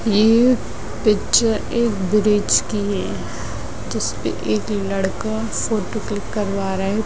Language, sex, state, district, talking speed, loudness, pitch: Hindi, female, Bihar, Samastipur, 120 wpm, -20 LUFS, 205 Hz